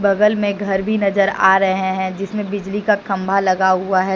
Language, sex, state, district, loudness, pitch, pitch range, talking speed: Hindi, female, Jharkhand, Deoghar, -17 LUFS, 195 Hz, 190-205 Hz, 215 wpm